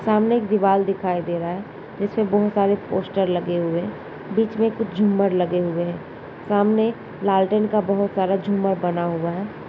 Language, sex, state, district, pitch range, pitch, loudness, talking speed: Hindi, female, Bihar, Purnia, 180-210 Hz, 195 Hz, -21 LUFS, 180 wpm